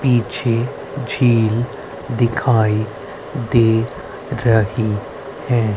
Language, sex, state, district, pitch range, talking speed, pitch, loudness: Hindi, female, Haryana, Rohtak, 110-125 Hz, 60 wpm, 115 Hz, -18 LUFS